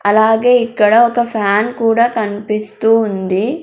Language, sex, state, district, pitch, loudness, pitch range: Telugu, female, Andhra Pradesh, Sri Satya Sai, 220 Hz, -13 LUFS, 210-235 Hz